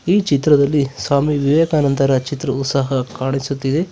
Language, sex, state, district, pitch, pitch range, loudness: Kannada, male, Karnataka, Bangalore, 140 Hz, 135-150 Hz, -17 LUFS